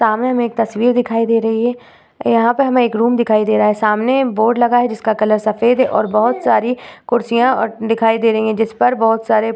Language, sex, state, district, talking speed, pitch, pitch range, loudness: Hindi, female, Uttar Pradesh, Budaun, 240 wpm, 225 Hz, 220-240 Hz, -15 LUFS